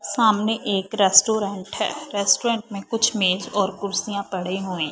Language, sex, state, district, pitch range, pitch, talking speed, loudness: Hindi, female, Punjab, Fazilka, 190-220 Hz, 200 Hz, 145 wpm, -21 LUFS